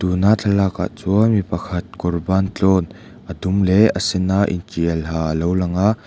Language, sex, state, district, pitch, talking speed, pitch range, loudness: Mizo, male, Mizoram, Aizawl, 95 Hz, 160 wpm, 90-100 Hz, -18 LUFS